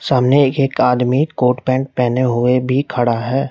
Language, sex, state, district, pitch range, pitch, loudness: Hindi, male, Uttar Pradesh, Lalitpur, 125-135 Hz, 130 Hz, -16 LUFS